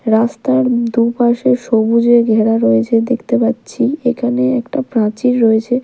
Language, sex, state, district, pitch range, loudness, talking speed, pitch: Bengali, female, Odisha, Malkangiri, 225-250 Hz, -14 LUFS, 115 wpm, 235 Hz